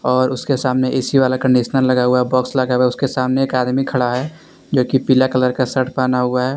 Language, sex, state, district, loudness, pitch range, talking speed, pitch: Hindi, male, Jharkhand, Deoghar, -17 LUFS, 125-130 Hz, 245 wpm, 130 Hz